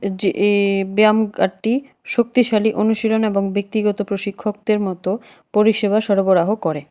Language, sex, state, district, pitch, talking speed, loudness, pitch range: Bengali, female, Tripura, West Tripura, 210 Hz, 105 wpm, -18 LUFS, 195-220 Hz